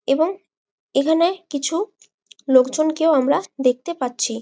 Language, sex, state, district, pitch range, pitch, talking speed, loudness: Bengali, female, West Bengal, Jalpaiguri, 260-340 Hz, 310 Hz, 110 wpm, -20 LUFS